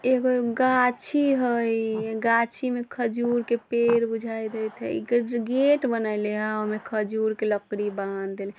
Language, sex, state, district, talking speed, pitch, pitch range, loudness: Bajjika, female, Bihar, Vaishali, 160 wpm, 230 Hz, 215-240 Hz, -25 LUFS